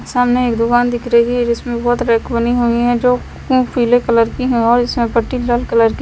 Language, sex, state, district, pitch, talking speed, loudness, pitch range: Hindi, female, Himachal Pradesh, Shimla, 240 Hz, 230 wpm, -15 LUFS, 235-245 Hz